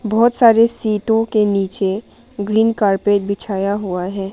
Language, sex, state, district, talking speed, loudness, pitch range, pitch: Hindi, female, Arunachal Pradesh, Papum Pare, 140 wpm, -16 LUFS, 195-225 Hz, 205 Hz